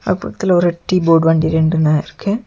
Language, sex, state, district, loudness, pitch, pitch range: Tamil, male, Tamil Nadu, Nilgiris, -15 LUFS, 165 Hz, 160-185 Hz